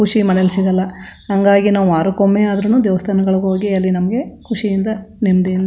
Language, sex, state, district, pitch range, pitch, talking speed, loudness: Kannada, female, Karnataka, Chamarajanagar, 190-205 Hz, 195 Hz, 150 wpm, -15 LUFS